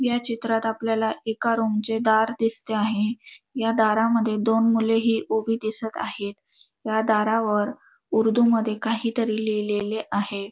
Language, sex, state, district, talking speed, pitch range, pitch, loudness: Marathi, female, Maharashtra, Dhule, 130 wpm, 215-225 Hz, 225 Hz, -24 LUFS